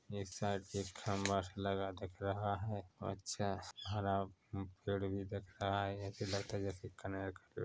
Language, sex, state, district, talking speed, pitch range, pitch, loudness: Hindi, male, Chhattisgarh, Korba, 180 wpm, 95-100 Hz, 100 Hz, -42 LUFS